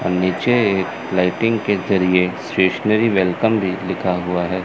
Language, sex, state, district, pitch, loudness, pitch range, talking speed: Hindi, male, Chandigarh, Chandigarh, 95 Hz, -18 LUFS, 90-105 Hz, 140 wpm